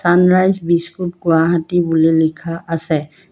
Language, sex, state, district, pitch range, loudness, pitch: Assamese, female, Assam, Kamrup Metropolitan, 165-175 Hz, -16 LUFS, 170 Hz